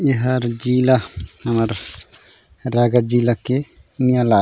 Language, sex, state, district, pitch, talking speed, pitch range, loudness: Chhattisgarhi, male, Chhattisgarh, Raigarh, 120 Hz, 120 wpm, 115-130 Hz, -18 LUFS